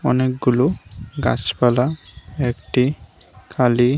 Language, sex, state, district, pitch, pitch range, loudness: Bengali, male, Tripura, West Tripura, 125 Hz, 100-130 Hz, -19 LUFS